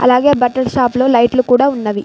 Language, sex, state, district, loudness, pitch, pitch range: Telugu, female, Telangana, Mahabubabad, -13 LUFS, 250 Hz, 240-260 Hz